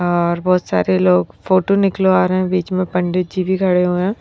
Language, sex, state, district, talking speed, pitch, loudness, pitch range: Hindi, female, Haryana, Rohtak, 230 wpm, 185 Hz, -16 LUFS, 175-185 Hz